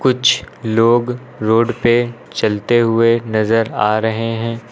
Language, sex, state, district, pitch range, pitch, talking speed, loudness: Hindi, male, Uttar Pradesh, Lucknow, 110-120 Hz, 115 Hz, 125 wpm, -16 LUFS